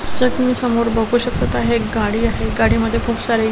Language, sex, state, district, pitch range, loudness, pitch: Marathi, female, Maharashtra, Washim, 185-240 Hz, -17 LUFS, 230 Hz